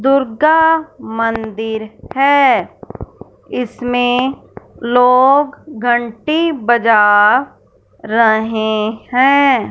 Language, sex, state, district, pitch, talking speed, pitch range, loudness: Hindi, female, Punjab, Fazilka, 245 Hz, 55 wpm, 225-275 Hz, -13 LUFS